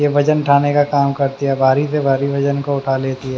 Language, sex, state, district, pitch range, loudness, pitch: Hindi, male, Haryana, Charkhi Dadri, 135-145 Hz, -16 LUFS, 140 Hz